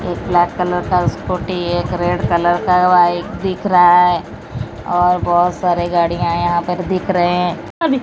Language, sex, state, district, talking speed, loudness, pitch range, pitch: Hindi, female, Odisha, Malkangiri, 180 wpm, -15 LUFS, 175-180 Hz, 175 Hz